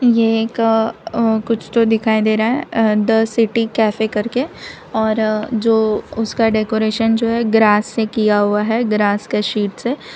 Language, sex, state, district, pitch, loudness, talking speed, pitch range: Hindi, female, Gujarat, Valsad, 225 Hz, -16 LUFS, 185 wpm, 215-230 Hz